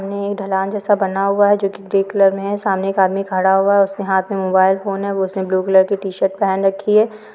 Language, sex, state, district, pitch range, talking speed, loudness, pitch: Hindi, female, Andhra Pradesh, Guntur, 190-200 Hz, 260 wpm, -17 LUFS, 195 Hz